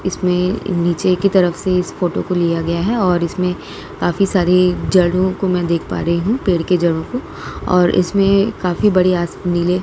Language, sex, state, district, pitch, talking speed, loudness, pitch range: Hindi, female, Uttar Pradesh, Jalaun, 180 Hz, 205 wpm, -16 LUFS, 175-190 Hz